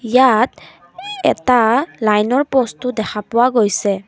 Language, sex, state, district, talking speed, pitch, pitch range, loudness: Assamese, female, Assam, Kamrup Metropolitan, 105 wpm, 235 Hz, 215-260 Hz, -16 LUFS